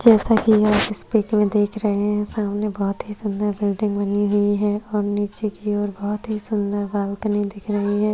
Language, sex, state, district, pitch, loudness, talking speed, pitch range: Hindi, female, Maharashtra, Chandrapur, 210 Hz, -21 LUFS, 205 wpm, 205-210 Hz